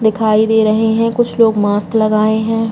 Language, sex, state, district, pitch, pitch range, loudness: Hindi, female, Uttar Pradesh, Jalaun, 220 Hz, 215-225 Hz, -13 LUFS